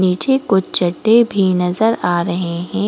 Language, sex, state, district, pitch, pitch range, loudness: Hindi, female, Goa, North and South Goa, 185 Hz, 180-220 Hz, -15 LUFS